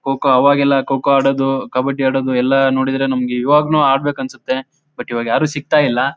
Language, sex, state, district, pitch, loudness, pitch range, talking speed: Kannada, male, Karnataka, Raichur, 135 Hz, -15 LUFS, 130-140 Hz, 155 wpm